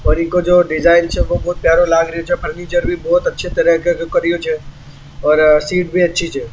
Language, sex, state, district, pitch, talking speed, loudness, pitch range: Marwari, male, Rajasthan, Churu, 170 Hz, 200 wpm, -15 LUFS, 160-175 Hz